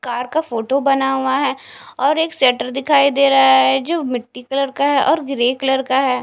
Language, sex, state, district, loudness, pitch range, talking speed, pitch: Hindi, female, Punjab, Fazilka, -16 LUFS, 255-280 Hz, 220 wpm, 270 Hz